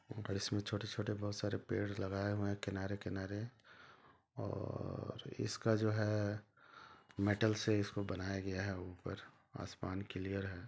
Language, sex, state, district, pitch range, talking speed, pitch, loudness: Hindi, male, Chhattisgarh, Rajnandgaon, 95-105 Hz, 135 wpm, 100 Hz, -40 LUFS